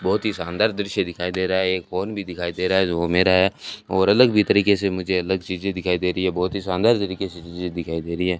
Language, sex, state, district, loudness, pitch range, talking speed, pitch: Hindi, male, Rajasthan, Bikaner, -21 LUFS, 90-100 Hz, 295 wpm, 95 Hz